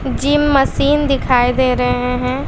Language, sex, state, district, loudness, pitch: Hindi, female, Bihar, West Champaran, -15 LUFS, 260 Hz